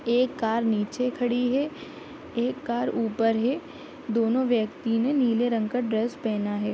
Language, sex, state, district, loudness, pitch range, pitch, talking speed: Hindi, female, Bihar, Madhepura, -26 LUFS, 225-265 Hz, 240 Hz, 160 wpm